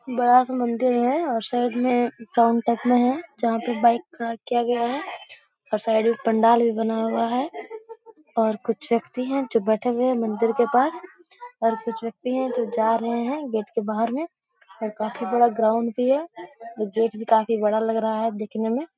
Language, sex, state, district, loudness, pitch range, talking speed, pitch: Hindi, female, Bihar, Supaul, -23 LUFS, 225-255 Hz, 195 wpm, 235 Hz